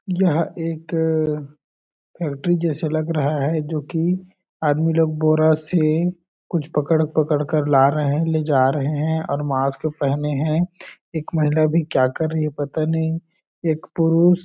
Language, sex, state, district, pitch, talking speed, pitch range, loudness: Hindi, male, Chhattisgarh, Balrampur, 155 Hz, 160 wpm, 150-165 Hz, -21 LUFS